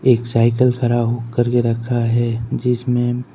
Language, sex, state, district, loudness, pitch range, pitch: Hindi, male, Arunachal Pradesh, Papum Pare, -18 LUFS, 115-125 Hz, 120 Hz